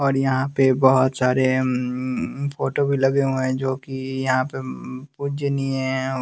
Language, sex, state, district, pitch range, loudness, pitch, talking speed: Hindi, male, Bihar, West Champaran, 130-135 Hz, -22 LUFS, 130 Hz, 175 wpm